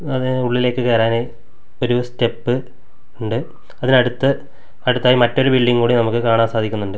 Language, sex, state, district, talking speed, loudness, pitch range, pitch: Malayalam, male, Kerala, Kasaragod, 120 wpm, -17 LUFS, 115-130 Hz, 120 Hz